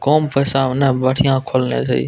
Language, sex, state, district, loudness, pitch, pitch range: Maithili, male, Bihar, Purnia, -16 LUFS, 130 Hz, 130-140 Hz